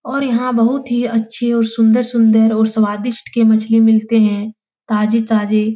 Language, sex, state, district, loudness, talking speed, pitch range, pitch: Hindi, female, Uttar Pradesh, Etah, -14 LUFS, 145 wpm, 220-235 Hz, 225 Hz